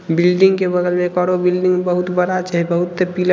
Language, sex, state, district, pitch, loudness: Maithili, female, Bihar, Samastipur, 180 Hz, -16 LUFS